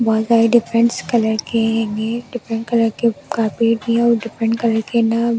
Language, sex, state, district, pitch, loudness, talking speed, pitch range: Hindi, female, Delhi, New Delhi, 230 Hz, -17 LUFS, 155 wpm, 225-235 Hz